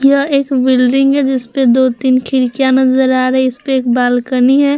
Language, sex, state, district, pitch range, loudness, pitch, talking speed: Hindi, female, Bihar, Vaishali, 255-270 Hz, -12 LUFS, 260 Hz, 225 wpm